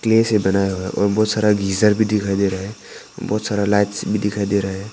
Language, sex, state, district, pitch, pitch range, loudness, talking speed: Hindi, male, Arunachal Pradesh, Papum Pare, 105 Hz, 100-105 Hz, -19 LUFS, 270 wpm